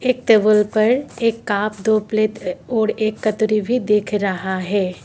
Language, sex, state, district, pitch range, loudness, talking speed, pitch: Hindi, female, Assam, Kamrup Metropolitan, 205-225 Hz, -18 LUFS, 155 wpm, 215 Hz